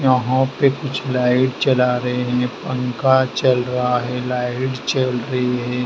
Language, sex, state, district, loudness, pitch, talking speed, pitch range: Hindi, male, Madhya Pradesh, Dhar, -19 LUFS, 125 Hz, 155 wpm, 125-130 Hz